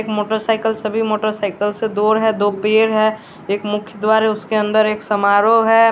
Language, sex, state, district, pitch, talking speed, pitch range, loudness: Hindi, male, Bihar, West Champaran, 215 Hz, 210 wpm, 210-220 Hz, -16 LUFS